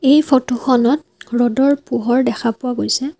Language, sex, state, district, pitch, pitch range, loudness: Assamese, female, Assam, Kamrup Metropolitan, 255 Hz, 240-275 Hz, -16 LUFS